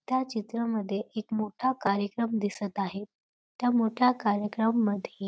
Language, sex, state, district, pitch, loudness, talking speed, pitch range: Marathi, female, Maharashtra, Dhule, 220 Hz, -29 LUFS, 125 wpm, 205-235 Hz